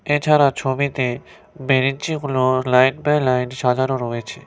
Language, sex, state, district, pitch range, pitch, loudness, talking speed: Bengali, male, West Bengal, Cooch Behar, 125-145 Hz, 135 Hz, -19 LUFS, 105 wpm